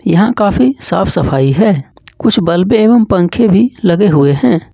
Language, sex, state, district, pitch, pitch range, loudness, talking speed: Hindi, male, Jharkhand, Ranchi, 190 Hz, 145-215 Hz, -11 LUFS, 165 wpm